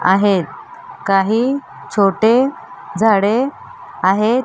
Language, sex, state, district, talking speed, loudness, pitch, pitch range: Marathi, female, Maharashtra, Mumbai Suburban, 65 wpm, -16 LUFS, 220 Hz, 195-260 Hz